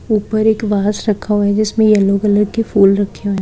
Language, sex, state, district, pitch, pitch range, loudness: Hindi, female, Haryana, Charkhi Dadri, 210 Hz, 200-215 Hz, -14 LUFS